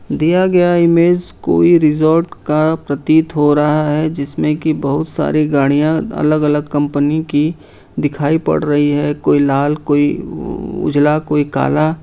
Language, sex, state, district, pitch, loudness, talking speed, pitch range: Hindi, male, Jharkhand, Ranchi, 150 Hz, -14 LUFS, 145 wpm, 145-155 Hz